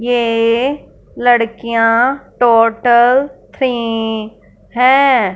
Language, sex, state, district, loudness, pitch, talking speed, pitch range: Hindi, female, Punjab, Fazilka, -13 LUFS, 240 Hz, 55 wpm, 230-255 Hz